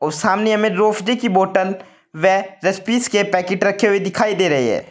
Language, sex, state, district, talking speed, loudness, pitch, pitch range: Hindi, male, Uttar Pradesh, Saharanpur, 195 wpm, -17 LUFS, 195 Hz, 190-215 Hz